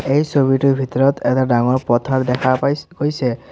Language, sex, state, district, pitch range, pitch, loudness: Assamese, male, Assam, Sonitpur, 125-140 Hz, 130 Hz, -17 LUFS